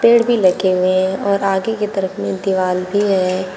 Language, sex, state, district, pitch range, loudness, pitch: Hindi, female, Uttar Pradesh, Shamli, 185-200 Hz, -16 LUFS, 190 Hz